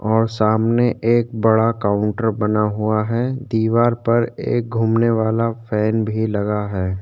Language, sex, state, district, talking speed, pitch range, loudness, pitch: Hindi, male, Chhattisgarh, Korba, 145 wpm, 105-115 Hz, -18 LUFS, 110 Hz